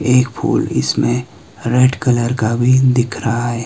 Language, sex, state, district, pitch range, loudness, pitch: Hindi, male, Himachal Pradesh, Shimla, 115-125 Hz, -15 LUFS, 120 Hz